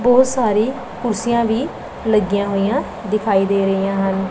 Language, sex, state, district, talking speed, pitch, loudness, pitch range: Punjabi, female, Punjab, Pathankot, 140 wpm, 210 Hz, -18 LUFS, 195-235 Hz